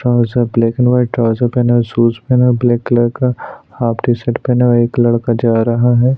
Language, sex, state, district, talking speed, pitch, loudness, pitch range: Hindi, male, Maharashtra, Aurangabad, 240 wpm, 120 Hz, -13 LUFS, 115-125 Hz